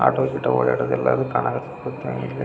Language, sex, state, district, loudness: Kannada, male, Karnataka, Belgaum, -22 LUFS